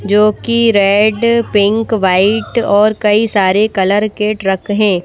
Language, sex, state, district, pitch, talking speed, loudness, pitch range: Hindi, female, Madhya Pradesh, Bhopal, 210 Hz, 145 wpm, -12 LUFS, 200-220 Hz